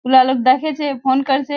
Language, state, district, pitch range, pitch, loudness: Surjapuri, Bihar, Kishanganj, 260-285 Hz, 265 Hz, -16 LUFS